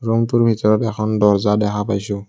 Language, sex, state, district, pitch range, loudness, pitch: Assamese, male, Assam, Kamrup Metropolitan, 105-115 Hz, -17 LUFS, 105 Hz